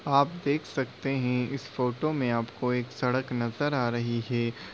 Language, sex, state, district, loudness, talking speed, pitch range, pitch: Hindi, male, Uttar Pradesh, Deoria, -29 LUFS, 190 wpm, 120-140 Hz, 125 Hz